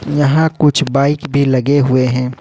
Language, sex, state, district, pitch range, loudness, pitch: Hindi, male, Jharkhand, Ranchi, 130-150 Hz, -13 LUFS, 140 Hz